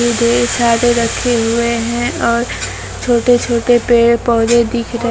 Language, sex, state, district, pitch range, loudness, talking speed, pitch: Hindi, female, Bihar, Kaimur, 235-240 Hz, -14 LUFS, 140 wpm, 235 Hz